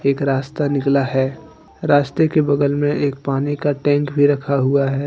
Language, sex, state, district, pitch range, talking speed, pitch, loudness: Hindi, male, Jharkhand, Deoghar, 140-145 Hz, 190 wpm, 140 Hz, -18 LUFS